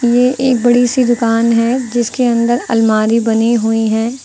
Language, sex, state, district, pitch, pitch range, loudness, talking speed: Hindi, female, Uttar Pradesh, Lucknow, 235 Hz, 225-245 Hz, -13 LUFS, 170 wpm